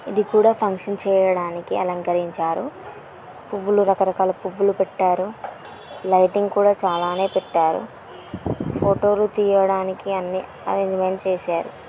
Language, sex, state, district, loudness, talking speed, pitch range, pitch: Telugu, female, Andhra Pradesh, Srikakulam, -21 LUFS, 90 wpm, 185-205 Hz, 190 Hz